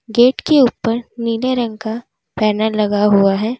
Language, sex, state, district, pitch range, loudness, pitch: Hindi, female, Uttar Pradesh, Lalitpur, 215-245 Hz, -16 LUFS, 230 Hz